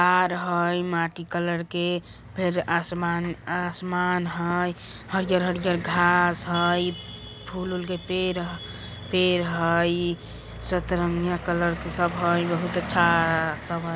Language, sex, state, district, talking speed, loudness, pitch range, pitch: Bajjika, female, Bihar, Vaishali, 110 wpm, -25 LUFS, 170-180 Hz, 175 Hz